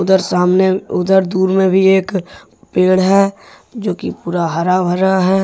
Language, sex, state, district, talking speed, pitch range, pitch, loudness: Hindi, male, Jharkhand, Deoghar, 165 wpm, 185-190 Hz, 190 Hz, -14 LUFS